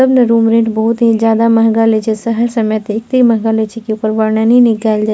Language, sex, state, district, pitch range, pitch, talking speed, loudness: Maithili, female, Bihar, Purnia, 220-230 Hz, 225 Hz, 270 wpm, -12 LUFS